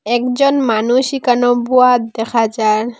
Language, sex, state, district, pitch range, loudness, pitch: Bengali, female, Assam, Hailakandi, 225-250 Hz, -14 LUFS, 245 Hz